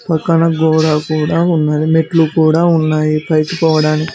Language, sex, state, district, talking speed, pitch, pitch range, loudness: Telugu, male, Telangana, Mahabubabad, 115 wpm, 160 Hz, 155-165 Hz, -13 LUFS